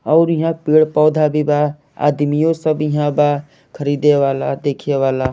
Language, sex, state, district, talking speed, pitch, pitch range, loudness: Bhojpuri, male, Jharkhand, Sahebganj, 160 wpm, 150 Hz, 145-155 Hz, -16 LUFS